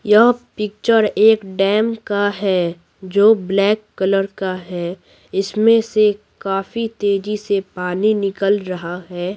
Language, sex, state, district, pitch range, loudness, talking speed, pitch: Hindi, female, Bihar, Patna, 190-215 Hz, -18 LUFS, 130 wpm, 200 Hz